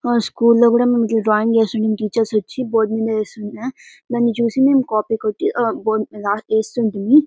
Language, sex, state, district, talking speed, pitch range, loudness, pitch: Telugu, female, Karnataka, Bellary, 155 wpm, 215-235 Hz, -18 LUFS, 225 Hz